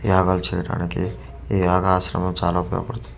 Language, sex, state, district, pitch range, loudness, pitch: Telugu, male, Andhra Pradesh, Manyam, 90-95 Hz, -22 LUFS, 90 Hz